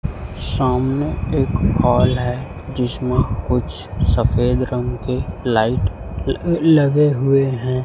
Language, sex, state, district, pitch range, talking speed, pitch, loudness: Hindi, male, Chhattisgarh, Raipur, 120-135 Hz, 105 wpm, 125 Hz, -18 LUFS